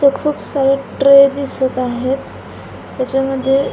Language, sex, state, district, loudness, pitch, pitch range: Marathi, female, Maharashtra, Pune, -15 LUFS, 270 Hz, 265-275 Hz